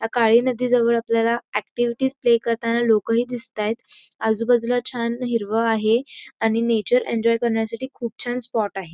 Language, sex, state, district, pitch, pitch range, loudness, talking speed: Marathi, female, Karnataka, Belgaum, 235 Hz, 225-245 Hz, -21 LUFS, 145 wpm